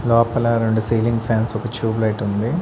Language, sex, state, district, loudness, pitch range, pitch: Telugu, male, Andhra Pradesh, Sri Satya Sai, -19 LUFS, 110-115 Hz, 115 Hz